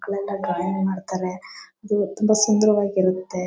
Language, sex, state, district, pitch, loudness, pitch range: Kannada, female, Karnataka, Mysore, 200 Hz, -22 LUFS, 185-210 Hz